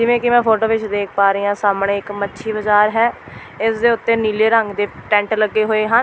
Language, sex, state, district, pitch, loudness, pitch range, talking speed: Punjabi, female, Delhi, New Delhi, 215 Hz, -17 LUFS, 205-225 Hz, 240 wpm